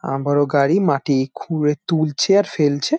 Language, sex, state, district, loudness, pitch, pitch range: Bengali, male, West Bengal, Jalpaiguri, -18 LUFS, 150 Hz, 145-170 Hz